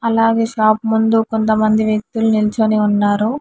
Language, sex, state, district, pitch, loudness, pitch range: Telugu, female, Telangana, Hyderabad, 220 Hz, -15 LUFS, 215-225 Hz